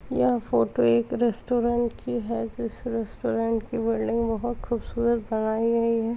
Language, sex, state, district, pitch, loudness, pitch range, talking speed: Hindi, female, Uttar Pradesh, Muzaffarnagar, 230 Hz, -26 LUFS, 220-235 Hz, 145 wpm